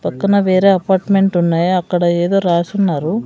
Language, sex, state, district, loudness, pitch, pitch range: Telugu, female, Andhra Pradesh, Sri Satya Sai, -14 LUFS, 185 Hz, 175-195 Hz